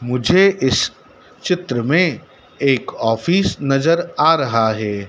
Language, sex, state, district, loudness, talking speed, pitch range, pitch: Hindi, male, Madhya Pradesh, Dhar, -17 LUFS, 120 wpm, 120-180 Hz, 140 Hz